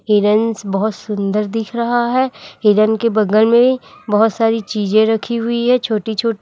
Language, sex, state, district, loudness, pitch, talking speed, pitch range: Hindi, female, Chhattisgarh, Raipur, -16 LUFS, 220 Hz, 170 wpm, 215-235 Hz